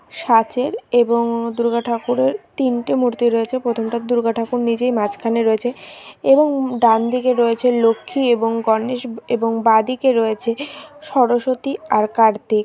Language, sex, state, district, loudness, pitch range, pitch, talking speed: Bengali, female, West Bengal, Purulia, -18 LUFS, 225-250 Hz, 235 Hz, 130 wpm